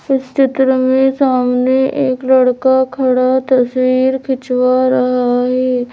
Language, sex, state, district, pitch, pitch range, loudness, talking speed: Hindi, female, Madhya Pradesh, Bhopal, 255 Hz, 255-265 Hz, -13 LUFS, 110 wpm